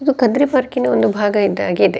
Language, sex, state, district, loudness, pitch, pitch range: Kannada, female, Karnataka, Dakshina Kannada, -16 LUFS, 250 Hz, 205-270 Hz